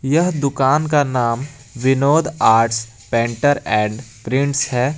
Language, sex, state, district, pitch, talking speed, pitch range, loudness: Hindi, male, Jharkhand, Garhwa, 130 Hz, 120 wpm, 115-145 Hz, -17 LUFS